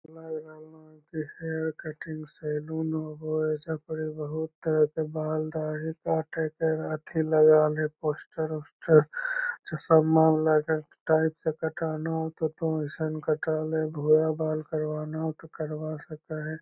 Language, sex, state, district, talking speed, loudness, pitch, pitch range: Magahi, male, Bihar, Lakhisarai, 130 wpm, -28 LUFS, 155 Hz, 155-160 Hz